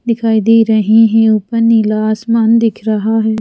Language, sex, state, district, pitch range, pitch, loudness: Hindi, female, Madhya Pradesh, Bhopal, 215-230 Hz, 225 Hz, -11 LUFS